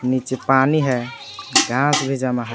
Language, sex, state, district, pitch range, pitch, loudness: Hindi, male, Jharkhand, Palamu, 125-135 Hz, 130 Hz, -18 LUFS